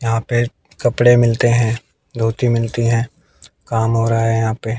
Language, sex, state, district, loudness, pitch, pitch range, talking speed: Hindi, male, Haryana, Jhajjar, -17 LUFS, 115 Hz, 115-120 Hz, 175 wpm